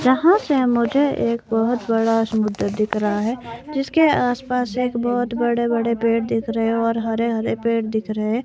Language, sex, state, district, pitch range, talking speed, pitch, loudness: Hindi, female, Himachal Pradesh, Shimla, 225-245 Hz, 190 wpm, 230 Hz, -20 LUFS